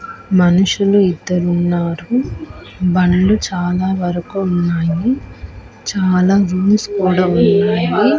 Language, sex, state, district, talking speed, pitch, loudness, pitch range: Telugu, female, Andhra Pradesh, Annamaya, 80 wpm, 185 Hz, -15 LUFS, 175-200 Hz